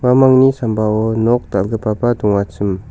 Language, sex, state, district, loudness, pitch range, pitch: Garo, male, Meghalaya, South Garo Hills, -15 LUFS, 105-120 Hz, 110 Hz